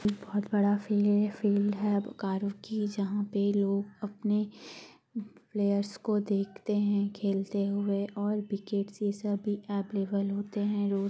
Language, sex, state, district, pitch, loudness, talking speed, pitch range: Hindi, female, Bihar, Gaya, 205 Hz, -31 LUFS, 140 wpm, 200-210 Hz